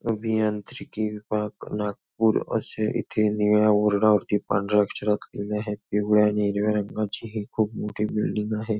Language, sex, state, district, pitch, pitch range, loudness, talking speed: Marathi, male, Maharashtra, Nagpur, 105 Hz, 105-110 Hz, -25 LUFS, 145 wpm